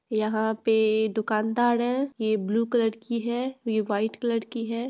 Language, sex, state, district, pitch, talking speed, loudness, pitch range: Hindi, female, Bihar, Purnia, 225 Hz, 185 wpm, -26 LUFS, 220-240 Hz